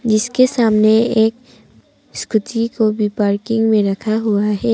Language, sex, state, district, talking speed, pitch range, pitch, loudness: Hindi, female, Arunachal Pradesh, Papum Pare, 140 wpm, 210-230 Hz, 220 Hz, -16 LUFS